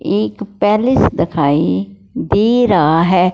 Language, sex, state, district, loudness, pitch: Hindi, male, Punjab, Fazilka, -14 LUFS, 170 Hz